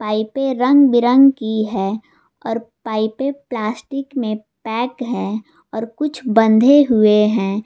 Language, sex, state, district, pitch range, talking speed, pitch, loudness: Hindi, female, Jharkhand, Garhwa, 215-260 Hz, 125 wpm, 225 Hz, -17 LUFS